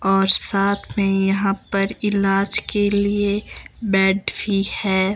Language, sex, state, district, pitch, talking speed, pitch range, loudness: Hindi, female, Himachal Pradesh, Shimla, 195 Hz, 130 wpm, 195-205 Hz, -18 LUFS